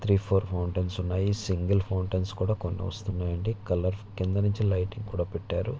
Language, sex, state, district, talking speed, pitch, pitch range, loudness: Telugu, male, Andhra Pradesh, Visakhapatnam, 165 wpm, 95 Hz, 90-100 Hz, -29 LUFS